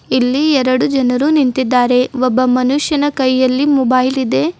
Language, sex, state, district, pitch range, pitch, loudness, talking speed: Kannada, female, Karnataka, Bidar, 255-280 Hz, 260 Hz, -13 LUFS, 115 wpm